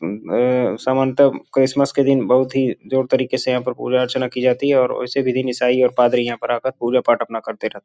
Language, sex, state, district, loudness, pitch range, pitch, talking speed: Hindi, male, Uttar Pradesh, Gorakhpur, -18 LUFS, 125-130 Hz, 125 Hz, 265 wpm